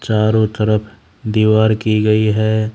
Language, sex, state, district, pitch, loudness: Hindi, male, Haryana, Charkhi Dadri, 110 Hz, -15 LUFS